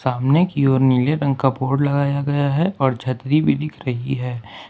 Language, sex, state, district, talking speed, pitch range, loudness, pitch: Hindi, male, Jharkhand, Ranchi, 205 wpm, 130-145 Hz, -19 LUFS, 135 Hz